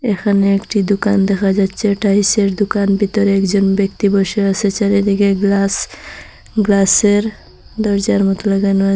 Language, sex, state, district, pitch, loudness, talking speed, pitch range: Bengali, female, Assam, Hailakandi, 200 Hz, -14 LUFS, 140 wpm, 195-205 Hz